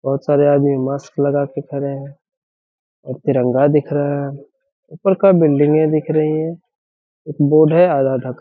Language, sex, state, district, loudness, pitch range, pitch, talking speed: Hindi, male, Bihar, Saharsa, -16 LUFS, 140-155 Hz, 145 Hz, 170 wpm